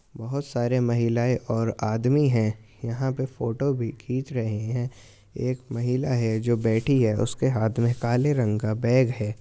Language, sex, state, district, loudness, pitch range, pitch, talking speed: Hindi, male, Uttar Pradesh, Jyotiba Phule Nagar, -25 LUFS, 110-130 Hz, 120 Hz, 170 wpm